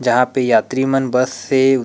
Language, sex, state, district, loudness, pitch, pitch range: Chhattisgarhi, male, Chhattisgarh, Rajnandgaon, -16 LUFS, 130 Hz, 125-135 Hz